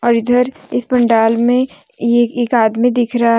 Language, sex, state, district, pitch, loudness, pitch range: Hindi, female, Jharkhand, Deoghar, 240 Hz, -14 LUFS, 230-245 Hz